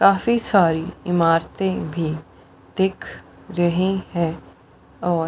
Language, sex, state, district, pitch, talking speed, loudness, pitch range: Hindi, female, Bihar, Gaya, 175 Hz, 100 wpm, -21 LUFS, 165-190 Hz